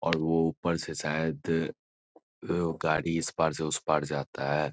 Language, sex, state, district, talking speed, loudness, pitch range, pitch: Hindi, male, Bihar, Darbhanga, 175 wpm, -30 LUFS, 80-85 Hz, 80 Hz